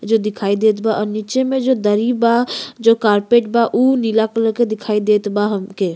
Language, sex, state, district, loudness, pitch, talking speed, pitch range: Bhojpuri, female, Uttar Pradesh, Gorakhpur, -16 LUFS, 220 Hz, 210 wpm, 210-235 Hz